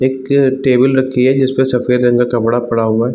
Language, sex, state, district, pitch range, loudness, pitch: Hindi, male, Chhattisgarh, Bilaspur, 120-130 Hz, -13 LUFS, 125 Hz